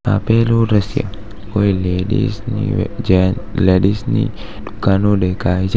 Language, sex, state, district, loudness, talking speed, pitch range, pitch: Gujarati, male, Gujarat, Valsad, -16 LUFS, 125 wpm, 95-110 Hz, 105 Hz